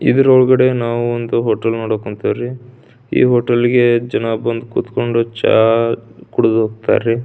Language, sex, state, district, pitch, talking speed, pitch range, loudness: Kannada, male, Karnataka, Belgaum, 120 Hz, 125 wpm, 115-120 Hz, -15 LUFS